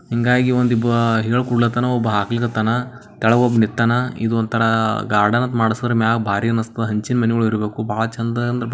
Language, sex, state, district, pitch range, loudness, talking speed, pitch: Kannada, male, Karnataka, Bijapur, 110-120 Hz, -18 LUFS, 145 wpm, 115 Hz